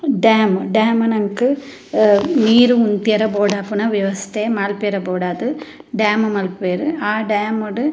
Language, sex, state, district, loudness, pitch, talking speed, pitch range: Tulu, female, Karnataka, Dakshina Kannada, -17 LUFS, 215 Hz, 115 wpm, 205-230 Hz